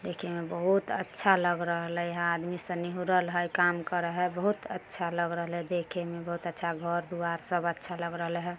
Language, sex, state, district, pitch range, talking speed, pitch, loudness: Maithili, female, Bihar, Samastipur, 170-175 Hz, 200 wpm, 175 Hz, -31 LUFS